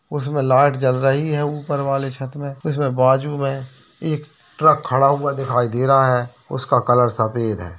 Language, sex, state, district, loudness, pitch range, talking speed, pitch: Hindi, male, Bihar, Jahanabad, -19 LUFS, 125-145 Hz, 185 wpm, 135 Hz